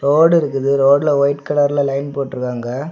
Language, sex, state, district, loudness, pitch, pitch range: Tamil, male, Tamil Nadu, Kanyakumari, -16 LUFS, 140 Hz, 135-145 Hz